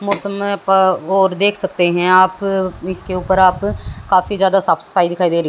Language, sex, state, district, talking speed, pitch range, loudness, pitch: Hindi, female, Haryana, Jhajjar, 185 wpm, 185-195 Hz, -15 LUFS, 190 Hz